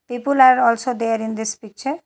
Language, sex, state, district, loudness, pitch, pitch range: English, female, Telangana, Hyderabad, -18 LUFS, 235 Hz, 220-260 Hz